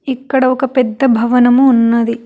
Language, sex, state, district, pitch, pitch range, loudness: Telugu, female, Telangana, Hyderabad, 250 Hz, 235-265 Hz, -12 LUFS